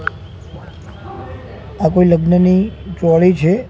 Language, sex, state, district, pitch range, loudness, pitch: Gujarati, male, Gujarat, Gandhinagar, 130-180 Hz, -14 LUFS, 170 Hz